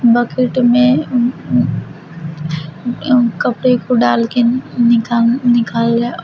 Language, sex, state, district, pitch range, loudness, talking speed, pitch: Hindi, female, Uttar Pradesh, Shamli, 230-245 Hz, -14 LUFS, 75 wpm, 240 Hz